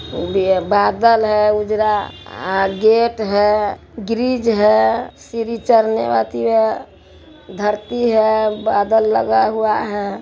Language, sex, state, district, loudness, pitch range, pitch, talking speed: Hindi, male, Bihar, Araria, -16 LUFS, 190-220 Hz, 210 Hz, 110 wpm